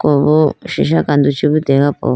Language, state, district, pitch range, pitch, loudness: Idu Mishmi, Arunachal Pradesh, Lower Dibang Valley, 140-150 Hz, 145 Hz, -13 LUFS